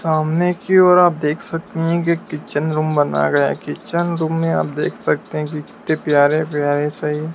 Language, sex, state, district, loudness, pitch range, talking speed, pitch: Hindi, male, Madhya Pradesh, Dhar, -18 LUFS, 150-170 Hz, 205 wpm, 155 Hz